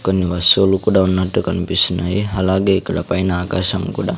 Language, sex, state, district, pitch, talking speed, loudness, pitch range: Telugu, male, Andhra Pradesh, Sri Satya Sai, 95 Hz, 145 wpm, -16 LUFS, 90-95 Hz